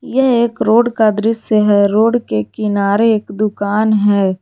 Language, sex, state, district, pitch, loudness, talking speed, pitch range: Hindi, female, Jharkhand, Garhwa, 215 Hz, -14 LUFS, 165 wpm, 205-225 Hz